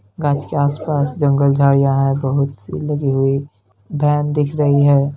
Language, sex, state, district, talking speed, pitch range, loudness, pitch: Hindi, male, Bihar, Lakhisarai, 160 wpm, 135-145 Hz, -17 LUFS, 140 Hz